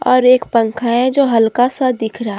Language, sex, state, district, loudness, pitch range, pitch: Hindi, female, Jharkhand, Deoghar, -14 LUFS, 225-255 Hz, 245 Hz